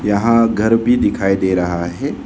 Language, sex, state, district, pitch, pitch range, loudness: Hindi, male, Arunachal Pradesh, Lower Dibang Valley, 100 Hz, 95-115 Hz, -15 LUFS